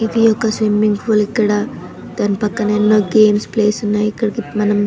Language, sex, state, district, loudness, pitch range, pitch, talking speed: Telugu, female, Telangana, Nalgonda, -15 LUFS, 210-220 Hz, 210 Hz, 175 wpm